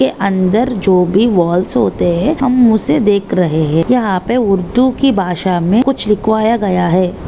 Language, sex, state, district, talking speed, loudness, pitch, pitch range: Hindi, female, Maharashtra, Nagpur, 180 wpm, -13 LUFS, 200 Hz, 180-240 Hz